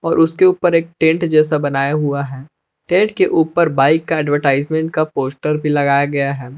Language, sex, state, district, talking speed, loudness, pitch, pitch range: Hindi, male, Jharkhand, Palamu, 180 wpm, -15 LUFS, 155 Hz, 140-165 Hz